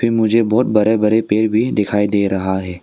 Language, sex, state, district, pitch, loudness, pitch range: Hindi, male, Arunachal Pradesh, Longding, 105 Hz, -16 LUFS, 100-110 Hz